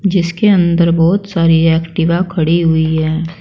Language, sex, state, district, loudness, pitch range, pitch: Hindi, female, Uttar Pradesh, Saharanpur, -13 LUFS, 165-175 Hz, 170 Hz